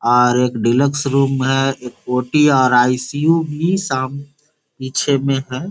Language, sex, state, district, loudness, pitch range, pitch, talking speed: Hindi, male, Bihar, Gopalganj, -16 LUFS, 125-145 Hz, 135 Hz, 145 wpm